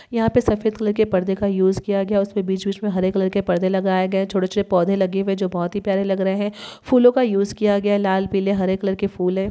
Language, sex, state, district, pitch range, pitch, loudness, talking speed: Hindi, female, Telangana, Karimnagar, 190-205 Hz, 195 Hz, -20 LUFS, 295 wpm